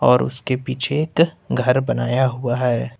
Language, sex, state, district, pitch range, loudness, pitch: Hindi, male, Jharkhand, Ranchi, 120-135 Hz, -20 LUFS, 130 Hz